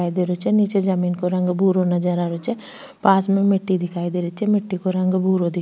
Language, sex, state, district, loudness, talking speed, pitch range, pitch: Rajasthani, female, Rajasthan, Nagaur, -20 LUFS, 280 wpm, 180-195 Hz, 185 Hz